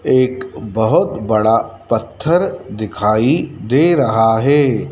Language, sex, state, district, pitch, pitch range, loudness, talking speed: Hindi, male, Madhya Pradesh, Dhar, 115 Hz, 110-135 Hz, -15 LUFS, 95 wpm